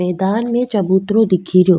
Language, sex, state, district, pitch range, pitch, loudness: Rajasthani, female, Rajasthan, Nagaur, 185-220 Hz, 190 Hz, -15 LUFS